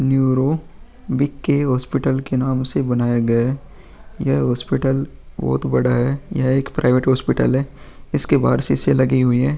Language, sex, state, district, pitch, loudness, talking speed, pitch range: Hindi, male, Bihar, Vaishali, 130 Hz, -19 LUFS, 180 wpm, 125-140 Hz